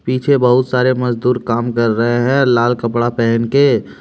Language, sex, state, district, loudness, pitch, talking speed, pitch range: Hindi, male, Jharkhand, Deoghar, -14 LUFS, 120 Hz, 180 wpm, 115-125 Hz